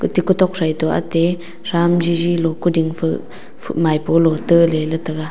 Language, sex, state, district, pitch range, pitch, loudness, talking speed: Wancho, female, Arunachal Pradesh, Longding, 160-175 Hz, 165 Hz, -17 LUFS, 135 wpm